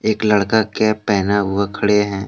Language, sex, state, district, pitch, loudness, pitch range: Hindi, male, Jharkhand, Deoghar, 105 Hz, -17 LUFS, 100-110 Hz